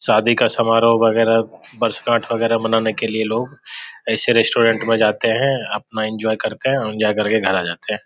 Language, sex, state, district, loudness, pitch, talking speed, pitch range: Hindi, male, Bihar, Samastipur, -18 LUFS, 115 Hz, 195 wpm, 110-115 Hz